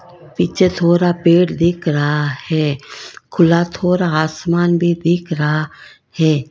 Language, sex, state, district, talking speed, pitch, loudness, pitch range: Hindi, female, Karnataka, Bangalore, 120 wpm, 170 Hz, -16 LUFS, 155-175 Hz